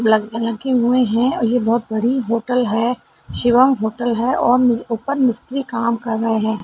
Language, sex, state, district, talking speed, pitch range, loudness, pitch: Hindi, female, Madhya Pradesh, Dhar, 180 wpm, 230-250 Hz, -18 LUFS, 235 Hz